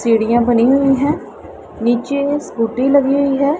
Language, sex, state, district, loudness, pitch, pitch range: Hindi, female, Punjab, Pathankot, -15 LUFS, 270 Hz, 235-280 Hz